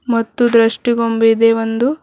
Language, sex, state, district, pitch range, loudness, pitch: Kannada, female, Karnataka, Bidar, 225-240 Hz, -14 LUFS, 230 Hz